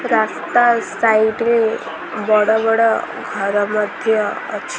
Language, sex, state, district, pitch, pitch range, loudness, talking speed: Odia, female, Odisha, Khordha, 220 Hz, 210-230 Hz, -17 LUFS, 100 wpm